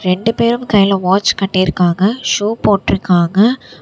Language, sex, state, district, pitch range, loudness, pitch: Tamil, female, Tamil Nadu, Namakkal, 185-220 Hz, -14 LUFS, 195 Hz